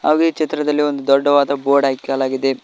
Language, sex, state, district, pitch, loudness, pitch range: Kannada, male, Karnataka, Koppal, 140 Hz, -17 LUFS, 135-150 Hz